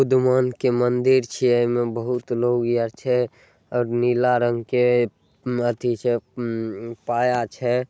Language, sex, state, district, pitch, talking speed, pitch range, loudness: Maithili, male, Bihar, Saharsa, 120 Hz, 130 wpm, 120-125 Hz, -22 LUFS